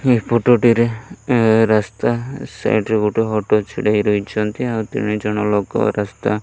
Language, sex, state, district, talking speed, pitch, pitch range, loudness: Odia, male, Odisha, Malkangiri, 170 wpm, 110 Hz, 105-120 Hz, -17 LUFS